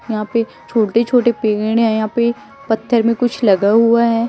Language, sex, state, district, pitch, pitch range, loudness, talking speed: Hindi, female, Chhattisgarh, Raipur, 230 Hz, 220-235 Hz, -15 LUFS, 195 wpm